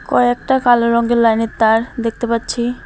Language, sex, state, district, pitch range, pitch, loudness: Bengali, female, West Bengal, Alipurduar, 230-245 Hz, 235 Hz, -15 LUFS